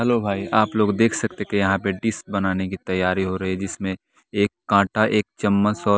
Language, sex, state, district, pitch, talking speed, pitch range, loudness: Hindi, male, Bihar, West Champaran, 100 Hz, 230 wpm, 95-105 Hz, -22 LUFS